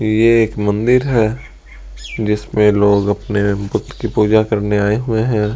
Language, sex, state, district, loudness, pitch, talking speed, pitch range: Hindi, male, Delhi, New Delhi, -15 LUFS, 110 Hz, 160 wpm, 105-115 Hz